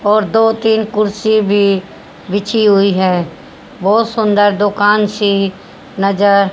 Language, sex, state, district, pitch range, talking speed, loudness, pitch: Hindi, female, Haryana, Charkhi Dadri, 200-215 Hz, 120 wpm, -13 LUFS, 205 Hz